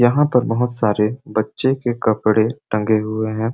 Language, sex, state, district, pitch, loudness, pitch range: Sadri, male, Chhattisgarh, Jashpur, 115 Hz, -19 LUFS, 110-125 Hz